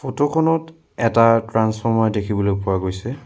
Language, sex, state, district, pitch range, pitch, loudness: Assamese, male, Assam, Sonitpur, 105-135 Hz, 115 Hz, -19 LUFS